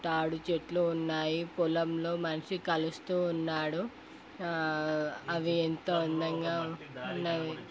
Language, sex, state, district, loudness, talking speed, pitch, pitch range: Telugu, male, Andhra Pradesh, Guntur, -33 LUFS, 85 wpm, 165 Hz, 160-170 Hz